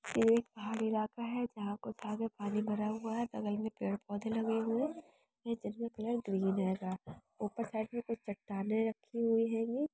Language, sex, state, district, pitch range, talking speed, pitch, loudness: Hindi, female, Bihar, Sitamarhi, 210-230 Hz, 185 wpm, 220 Hz, -37 LUFS